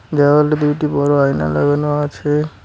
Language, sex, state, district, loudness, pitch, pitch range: Bengali, male, West Bengal, Cooch Behar, -15 LUFS, 145 Hz, 145-150 Hz